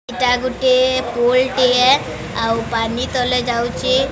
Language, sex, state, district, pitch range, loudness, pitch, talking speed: Odia, female, Odisha, Sambalpur, 240-255 Hz, -16 LUFS, 250 Hz, 115 wpm